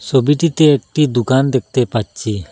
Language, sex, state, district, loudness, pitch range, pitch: Bengali, male, Assam, Hailakandi, -15 LUFS, 115-145 Hz, 130 Hz